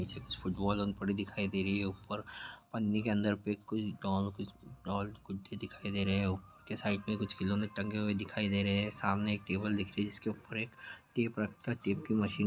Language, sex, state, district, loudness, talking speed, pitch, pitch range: Hindi, male, Chhattisgarh, Bastar, -36 LUFS, 205 wpm, 100 Hz, 100-105 Hz